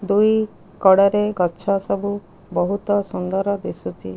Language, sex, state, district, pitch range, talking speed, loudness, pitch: Odia, female, Odisha, Khordha, 185-205 Hz, 100 wpm, -20 LUFS, 200 Hz